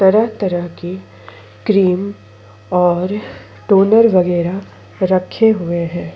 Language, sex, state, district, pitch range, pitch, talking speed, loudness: Hindi, female, Chhattisgarh, Korba, 170-195 Hz, 180 Hz, 90 wpm, -15 LUFS